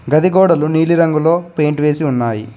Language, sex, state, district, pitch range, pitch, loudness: Telugu, male, Telangana, Mahabubabad, 150-165 Hz, 155 Hz, -14 LUFS